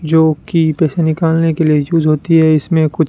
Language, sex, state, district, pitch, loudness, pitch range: Hindi, male, Rajasthan, Bikaner, 160 Hz, -13 LUFS, 155-165 Hz